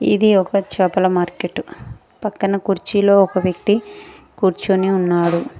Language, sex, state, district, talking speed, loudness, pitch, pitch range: Telugu, female, Telangana, Mahabubabad, 105 wpm, -17 LUFS, 195 Hz, 185-205 Hz